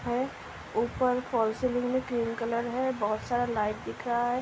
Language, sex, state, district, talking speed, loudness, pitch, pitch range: Hindi, female, Uttar Pradesh, Hamirpur, 190 wpm, -30 LUFS, 240 Hz, 230-250 Hz